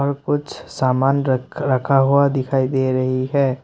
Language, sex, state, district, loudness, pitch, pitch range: Hindi, male, Assam, Sonitpur, -19 LUFS, 135 Hz, 130-140 Hz